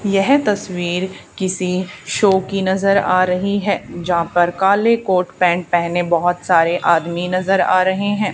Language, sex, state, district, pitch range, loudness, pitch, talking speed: Hindi, female, Haryana, Charkhi Dadri, 175-195 Hz, -17 LUFS, 185 Hz, 160 wpm